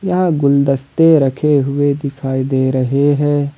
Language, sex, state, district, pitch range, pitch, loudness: Hindi, male, Jharkhand, Ranchi, 135-145 Hz, 140 Hz, -14 LUFS